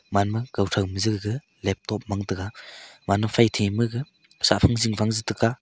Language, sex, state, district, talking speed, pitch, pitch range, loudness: Wancho, male, Arunachal Pradesh, Longding, 190 wpm, 110 Hz, 100-115 Hz, -24 LUFS